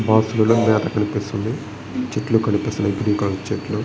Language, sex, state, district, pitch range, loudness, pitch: Telugu, male, Andhra Pradesh, Srikakulam, 105-115 Hz, -20 LUFS, 105 Hz